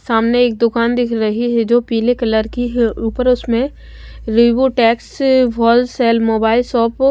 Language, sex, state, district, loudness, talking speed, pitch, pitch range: Hindi, female, Bihar, West Champaran, -15 LUFS, 160 wpm, 235 Hz, 230-245 Hz